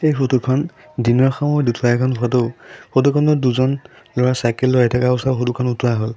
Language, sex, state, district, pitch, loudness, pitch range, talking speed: Assamese, male, Assam, Sonitpur, 125 Hz, -18 LUFS, 120-130 Hz, 195 wpm